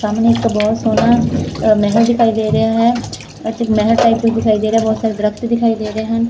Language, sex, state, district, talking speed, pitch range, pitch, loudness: Punjabi, female, Punjab, Fazilka, 230 wpm, 215-230 Hz, 225 Hz, -14 LUFS